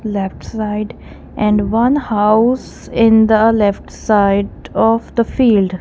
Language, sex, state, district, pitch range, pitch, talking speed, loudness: English, female, Punjab, Kapurthala, 205-230 Hz, 215 Hz, 125 wpm, -14 LUFS